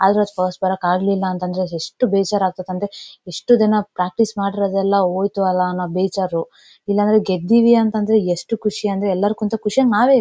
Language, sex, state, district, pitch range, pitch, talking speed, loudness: Kannada, female, Karnataka, Bellary, 185-215 Hz, 200 Hz, 160 wpm, -18 LUFS